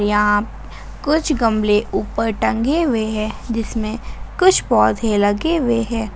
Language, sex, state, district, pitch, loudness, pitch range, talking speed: Hindi, female, Jharkhand, Ranchi, 225 Hz, -18 LUFS, 210-245 Hz, 125 wpm